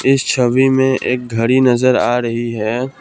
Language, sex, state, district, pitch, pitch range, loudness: Hindi, male, Assam, Kamrup Metropolitan, 125 Hz, 120-130 Hz, -15 LUFS